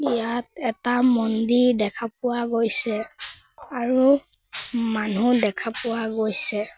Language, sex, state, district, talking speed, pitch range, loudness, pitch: Assamese, female, Assam, Sonitpur, 95 wpm, 220-245 Hz, -21 LUFS, 235 Hz